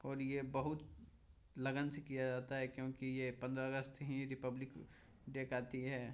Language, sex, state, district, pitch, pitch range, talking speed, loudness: Hindi, male, Bihar, Samastipur, 130 Hz, 125-135 Hz, 165 wpm, -44 LUFS